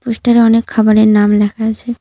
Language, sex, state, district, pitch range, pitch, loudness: Bengali, female, West Bengal, Cooch Behar, 215-235 Hz, 220 Hz, -11 LUFS